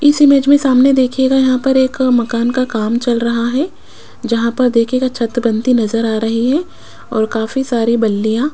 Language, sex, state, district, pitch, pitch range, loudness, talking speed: Hindi, female, Rajasthan, Jaipur, 245 Hz, 230-265 Hz, -14 LUFS, 195 wpm